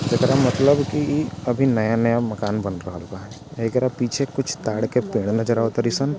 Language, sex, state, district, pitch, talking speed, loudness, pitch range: Bhojpuri, male, Bihar, Gopalganj, 120 Hz, 185 wpm, -21 LUFS, 110-135 Hz